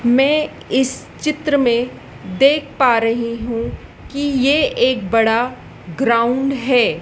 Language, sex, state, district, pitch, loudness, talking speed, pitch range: Hindi, female, Madhya Pradesh, Dhar, 255 Hz, -17 LUFS, 120 wpm, 235-280 Hz